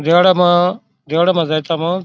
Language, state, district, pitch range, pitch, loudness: Bhili, Maharashtra, Dhule, 165-180 Hz, 175 Hz, -14 LUFS